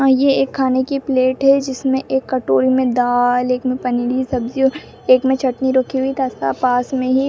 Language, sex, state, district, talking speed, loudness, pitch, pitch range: Hindi, female, Bihar, Purnia, 230 wpm, -17 LUFS, 260 Hz, 250-265 Hz